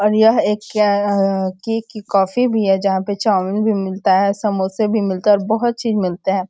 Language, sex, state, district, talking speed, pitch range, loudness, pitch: Hindi, female, Bihar, Sitamarhi, 240 wpm, 190-215 Hz, -17 LUFS, 205 Hz